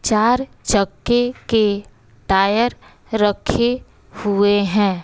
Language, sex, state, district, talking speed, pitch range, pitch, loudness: Hindi, female, Bihar, West Champaran, 85 wpm, 200-240 Hz, 210 Hz, -18 LUFS